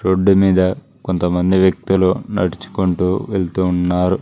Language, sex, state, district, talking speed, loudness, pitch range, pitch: Telugu, male, Telangana, Mahabubabad, 100 wpm, -17 LUFS, 90-95 Hz, 95 Hz